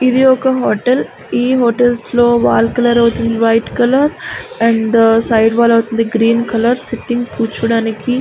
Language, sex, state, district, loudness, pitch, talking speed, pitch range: Telugu, female, Andhra Pradesh, Srikakulam, -13 LUFS, 235 Hz, 155 wpm, 230-245 Hz